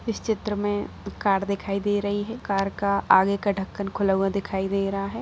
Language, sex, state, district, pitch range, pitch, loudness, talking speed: Hindi, female, Bihar, Saran, 195-205 Hz, 200 Hz, -25 LUFS, 220 wpm